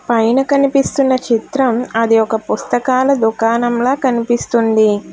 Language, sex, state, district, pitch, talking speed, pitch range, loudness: Telugu, female, Telangana, Hyderabad, 240 Hz, 95 wpm, 225-260 Hz, -14 LUFS